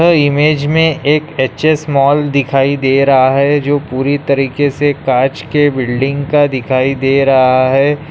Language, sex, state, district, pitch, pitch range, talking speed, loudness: Hindi, male, Bihar, Muzaffarpur, 140 Hz, 135-145 Hz, 165 wpm, -12 LUFS